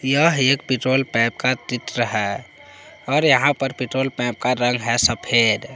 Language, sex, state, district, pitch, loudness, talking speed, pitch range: Hindi, male, Jharkhand, Palamu, 125 Hz, -19 LUFS, 165 wpm, 120-135 Hz